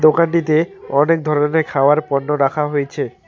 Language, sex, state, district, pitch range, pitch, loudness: Bengali, male, West Bengal, Alipurduar, 140-160 Hz, 150 Hz, -17 LUFS